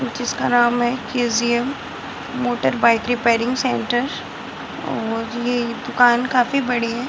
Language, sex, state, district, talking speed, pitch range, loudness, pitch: Hindi, female, Bihar, Muzaffarpur, 120 wpm, 235-250 Hz, -19 LUFS, 240 Hz